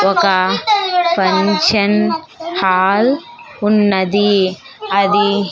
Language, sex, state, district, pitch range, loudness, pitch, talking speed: Telugu, female, Andhra Pradesh, Sri Satya Sai, 195-325 Hz, -14 LUFS, 205 Hz, 55 wpm